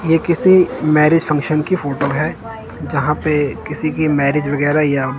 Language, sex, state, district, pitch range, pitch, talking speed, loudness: Hindi, male, Punjab, Kapurthala, 140-155 Hz, 150 Hz, 160 wpm, -16 LUFS